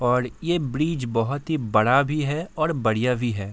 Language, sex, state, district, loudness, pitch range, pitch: Hindi, male, Bihar, Saharsa, -23 LUFS, 120-155 Hz, 135 Hz